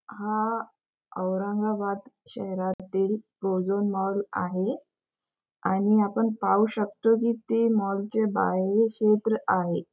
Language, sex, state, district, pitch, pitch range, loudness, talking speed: Marathi, female, Maharashtra, Aurangabad, 205 Hz, 195-220 Hz, -26 LUFS, 95 wpm